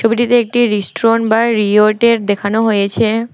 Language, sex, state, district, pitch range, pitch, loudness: Bengali, female, West Bengal, Alipurduar, 210-235 Hz, 225 Hz, -13 LUFS